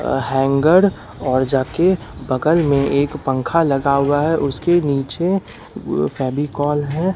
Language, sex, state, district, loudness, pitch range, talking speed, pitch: Hindi, male, Bihar, Katihar, -18 LUFS, 135-165 Hz, 135 wpm, 145 Hz